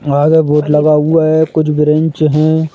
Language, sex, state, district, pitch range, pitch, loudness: Hindi, male, Madhya Pradesh, Bhopal, 150-160 Hz, 155 Hz, -11 LUFS